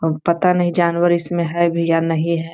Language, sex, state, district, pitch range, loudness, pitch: Hindi, female, Bihar, Saran, 165-175 Hz, -17 LUFS, 170 Hz